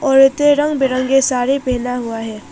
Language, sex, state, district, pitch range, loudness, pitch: Hindi, female, Arunachal Pradesh, Papum Pare, 250-275 Hz, -15 LUFS, 265 Hz